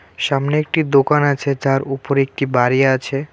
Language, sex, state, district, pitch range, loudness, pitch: Bengali, male, Tripura, West Tripura, 135-145 Hz, -17 LUFS, 135 Hz